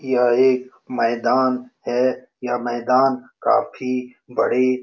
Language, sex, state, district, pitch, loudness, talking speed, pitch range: Hindi, male, Bihar, Saran, 125 Hz, -20 LUFS, 110 wpm, 120-130 Hz